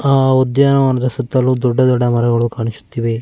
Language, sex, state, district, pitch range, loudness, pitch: Kannada, male, Karnataka, Mysore, 120-130 Hz, -15 LUFS, 125 Hz